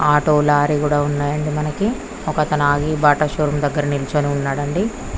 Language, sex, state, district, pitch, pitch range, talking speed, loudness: Telugu, female, Andhra Pradesh, Krishna, 150 Hz, 145-150 Hz, 185 wpm, -18 LUFS